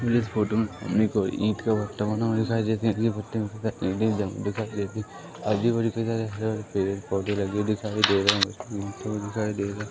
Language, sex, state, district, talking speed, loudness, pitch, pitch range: Hindi, male, Madhya Pradesh, Umaria, 170 wpm, -26 LUFS, 105 Hz, 100-110 Hz